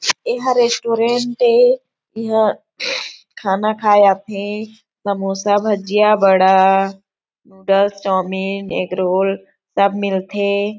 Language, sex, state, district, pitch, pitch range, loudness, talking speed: Chhattisgarhi, female, Chhattisgarh, Sarguja, 200 Hz, 195-220 Hz, -16 LUFS, 90 wpm